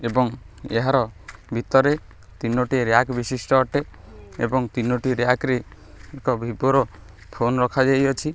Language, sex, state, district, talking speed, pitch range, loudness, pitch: Odia, male, Odisha, Khordha, 115 wpm, 110-130 Hz, -22 LUFS, 125 Hz